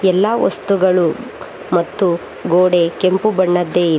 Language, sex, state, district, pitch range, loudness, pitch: Kannada, female, Karnataka, Bangalore, 175-190 Hz, -15 LUFS, 180 Hz